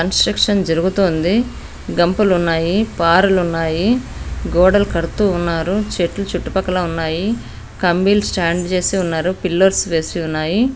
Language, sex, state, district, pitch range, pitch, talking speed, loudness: Telugu, female, Andhra Pradesh, Anantapur, 170-200 Hz, 180 Hz, 100 wpm, -17 LUFS